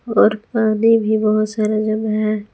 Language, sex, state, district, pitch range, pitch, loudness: Hindi, female, Jharkhand, Palamu, 215-220 Hz, 215 Hz, -17 LUFS